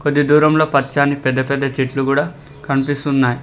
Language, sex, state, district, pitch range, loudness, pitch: Telugu, male, Telangana, Hyderabad, 135-145 Hz, -16 LUFS, 140 Hz